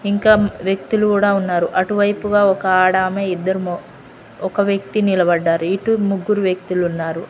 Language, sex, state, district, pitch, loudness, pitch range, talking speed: Telugu, female, Telangana, Mahabubabad, 190 Hz, -17 LUFS, 180-205 Hz, 130 wpm